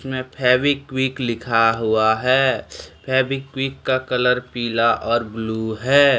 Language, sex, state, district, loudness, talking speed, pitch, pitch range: Hindi, male, Jharkhand, Deoghar, -19 LUFS, 115 wpm, 125 Hz, 115-130 Hz